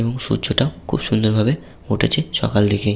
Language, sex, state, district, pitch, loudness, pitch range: Bengali, male, West Bengal, Paschim Medinipur, 115 Hz, -19 LUFS, 105-135 Hz